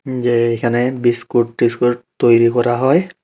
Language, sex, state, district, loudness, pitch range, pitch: Bengali, male, Tripura, Unakoti, -16 LUFS, 120-125 Hz, 120 Hz